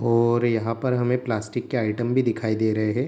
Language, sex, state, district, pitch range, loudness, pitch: Hindi, male, Bihar, Darbhanga, 110-125 Hz, -23 LUFS, 115 Hz